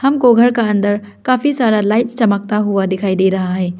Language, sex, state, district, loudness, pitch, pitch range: Hindi, female, Arunachal Pradesh, Lower Dibang Valley, -14 LUFS, 210 Hz, 195-240 Hz